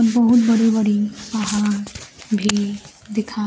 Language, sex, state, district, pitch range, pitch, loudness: Hindi, female, Bihar, Kaimur, 210-225 Hz, 210 Hz, -19 LUFS